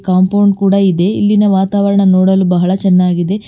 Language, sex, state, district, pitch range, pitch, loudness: Kannada, female, Karnataka, Bangalore, 185-200 Hz, 190 Hz, -11 LUFS